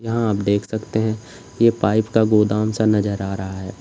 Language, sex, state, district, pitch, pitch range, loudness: Hindi, male, Uttar Pradesh, Lalitpur, 110 Hz, 100-110 Hz, -19 LUFS